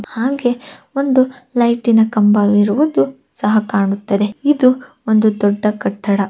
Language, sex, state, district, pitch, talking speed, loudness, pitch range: Kannada, female, Karnataka, Dharwad, 215 Hz, 105 wpm, -15 LUFS, 205-245 Hz